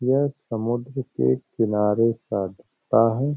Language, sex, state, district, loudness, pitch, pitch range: Hindi, male, Uttar Pradesh, Hamirpur, -23 LUFS, 115 Hz, 105-130 Hz